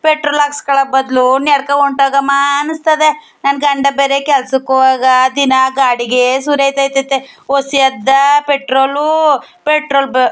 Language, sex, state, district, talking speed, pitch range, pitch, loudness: Kannada, female, Karnataka, Chamarajanagar, 115 wpm, 265-290 Hz, 275 Hz, -12 LUFS